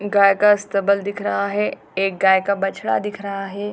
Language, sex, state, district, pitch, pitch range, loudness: Hindi, female, Bihar, Gopalganj, 195 Hz, 190-200 Hz, -19 LUFS